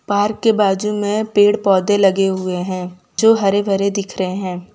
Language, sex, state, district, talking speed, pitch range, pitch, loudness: Hindi, female, Gujarat, Valsad, 190 wpm, 185-205 Hz, 200 Hz, -16 LUFS